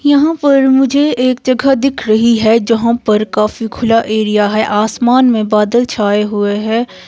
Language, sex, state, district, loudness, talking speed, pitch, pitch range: Hindi, female, Himachal Pradesh, Shimla, -12 LUFS, 170 wpm, 230 Hz, 215-255 Hz